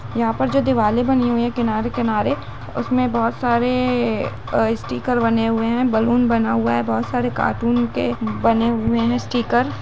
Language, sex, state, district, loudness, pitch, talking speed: Hindi, female, Uttar Pradesh, Budaun, -19 LUFS, 225 Hz, 175 wpm